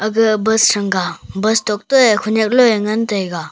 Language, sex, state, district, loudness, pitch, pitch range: Wancho, male, Arunachal Pradesh, Longding, -15 LUFS, 215 Hz, 205-220 Hz